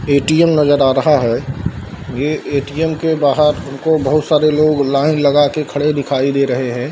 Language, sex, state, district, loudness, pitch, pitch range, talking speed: Hindi, male, Bihar, Darbhanga, -14 LUFS, 145 Hz, 140-155 Hz, 180 wpm